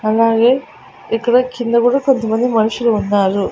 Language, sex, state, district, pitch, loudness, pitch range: Telugu, female, Andhra Pradesh, Annamaya, 230 Hz, -15 LUFS, 220-245 Hz